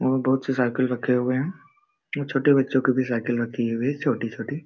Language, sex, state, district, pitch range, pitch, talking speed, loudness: Hindi, male, Jharkhand, Jamtara, 125-145 Hz, 130 Hz, 245 wpm, -24 LUFS